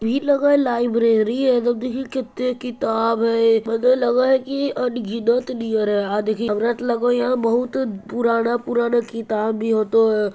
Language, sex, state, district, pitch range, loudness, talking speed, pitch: Magahi, male, Bihar, Jamui, 225-250 Hz, -20 LUFS, 180 wpm, 235 Hz